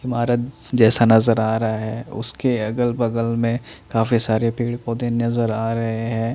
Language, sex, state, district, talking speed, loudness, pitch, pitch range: Hindi, male, Chandigarh, Chandigarh, 170 wpm, -20 LUFS, 115 Hz, 115-120 Hz